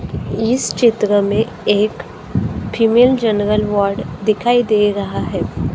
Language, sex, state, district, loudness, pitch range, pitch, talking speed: Hindi, female, Maharashtra, Gondia, -16 LUFS, 205-230 Hz, 210 Hz, 115 wpm